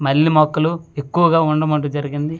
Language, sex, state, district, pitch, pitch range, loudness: Telugu, male, Andhra Pradesh, Manyam, 155 Hz, 145-160 Hz, -17 LUFS